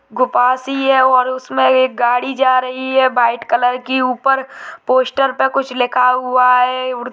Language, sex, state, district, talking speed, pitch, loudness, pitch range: Hindi, male, Uttarakhand, Uttarkashi, 185 wpm, 255 Hz, -15 LUFS, 250-265 Hz